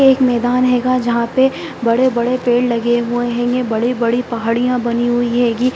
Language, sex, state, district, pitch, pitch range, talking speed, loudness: Hindi, female, Bihar, Sitamarhi, 240 Hz, 235-250 Hz, 155 wpm, -16 LUFS